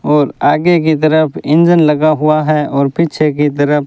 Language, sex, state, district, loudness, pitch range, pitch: Hindi, male, Rajasthan, Bikaner, -12 LUFS, 145-155 Hz, 155 Hz